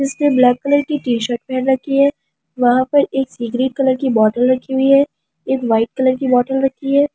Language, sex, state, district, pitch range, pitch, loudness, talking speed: Hindi, female, Delhi, New Delhi, 250-275 Hz, 265 Hz, -16 LUFS, 235 wpm